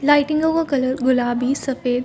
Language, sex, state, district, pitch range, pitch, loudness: Hindi, female, Chhattisgarh, Rajnandgaon, 255-290 Hz, 265 Hz, -19 LUFS